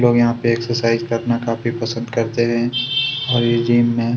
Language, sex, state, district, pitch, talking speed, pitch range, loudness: Hindi, male, Chhattisgarh, Kabirdham, 120 Hz, 185 wpm, 115-120 Hz, -18 LUFS